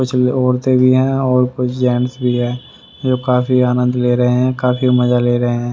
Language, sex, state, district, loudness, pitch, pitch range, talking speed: Hindi, male, Haryana, Rohtak, -15 LUFS, 125 Hz, 125-130 Hz, 210 wpm